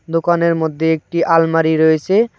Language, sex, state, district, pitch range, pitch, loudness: Bengali, male, West Bengal, Cooch Behar, 160-170 Hz, 165 Hz, -15 LUFS